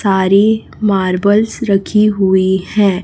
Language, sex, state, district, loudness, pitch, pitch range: Hindi, female, Chhattisgarh, Raipur, -13 LUFS, 200 Hz, 190-210 Hz